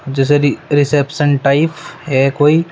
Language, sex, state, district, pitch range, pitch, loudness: Hindi, male, Uttar Pradesh, Shamli, 140-150 Hz, 145 Hz, -14 LUFS